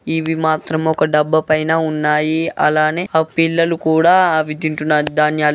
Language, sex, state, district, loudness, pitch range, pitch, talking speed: Telugu, male, Andhra Pradesh, Guntur, -15 LUFS, 155-160 Hz, 155 Hz, 140 wpm